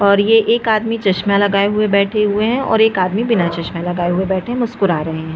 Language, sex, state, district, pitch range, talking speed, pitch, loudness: Hindi, female, Chhattisgarh, Bastar, 185-220 Hz, 245 wpm, 200 Hz, -15 LUFS